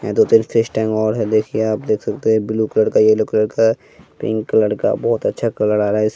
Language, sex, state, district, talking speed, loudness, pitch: Hindi, male, Bihar, West Champaran, 265 wpm, -17 LUFS, 110 Hz